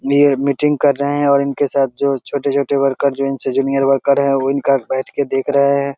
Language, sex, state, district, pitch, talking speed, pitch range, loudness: Maithili, male, Bihar, Begusarai, 140 Hz, 230 wpm, 135-140 Hz, -16 LUFS